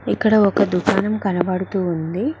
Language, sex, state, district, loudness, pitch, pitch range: Telugu, female, Telangana, Mahabubabad, -19 LUFS, 195 Hz, 185-210 Hz